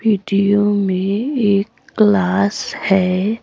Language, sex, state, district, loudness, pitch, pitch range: Hindi, female, Bihar, Patna, -16 LUFS, 200 Hz, 195-210 Hz